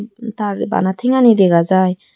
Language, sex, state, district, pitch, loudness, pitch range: Chakma, female, Tripura, Dhalai, 205 Hz, -14 LUFS, 185-225 Hz